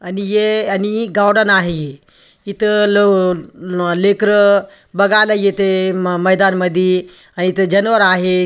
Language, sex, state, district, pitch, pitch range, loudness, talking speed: Marathi, male, Maharashtra, Aurangabad, 195 Hz, 180-205 Hz, -14 LUFS, 120 wpm